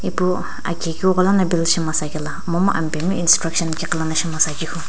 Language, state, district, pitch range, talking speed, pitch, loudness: Sumi, Nagaland, Dimapur, 160-180 Hz, 195 wpm, 165 Hz, -19 LUFS